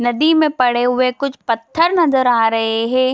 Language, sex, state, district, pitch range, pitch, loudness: Hindi, female, Chhattisgarh, Bilaspur, 240-280 Hz, 255 Hz, -15 LUFS